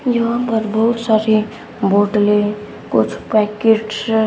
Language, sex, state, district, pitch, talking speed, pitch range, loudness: Hindi, female, Haryana, Rohtak, 220 Hz, 110 wpm, 210-225 Hz, -16 LUFS